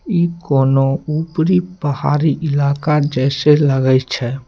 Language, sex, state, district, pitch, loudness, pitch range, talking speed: Maithili, male, Bihar, Samastipur, 145 Hz, -16 LUFS, 135-160 Hz, 105 wpm